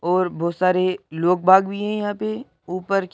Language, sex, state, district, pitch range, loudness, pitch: Hindi, male, Madhya Pradesh, Bhopal, 180-205 Hz, -20 LUFS, 185 Hz